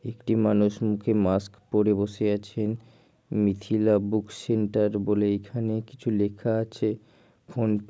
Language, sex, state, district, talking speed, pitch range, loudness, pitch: Bengali, male, West Bengal, Jhargram, 130 wpm, 105-110 Hz, -26 LUFS, 105 Hz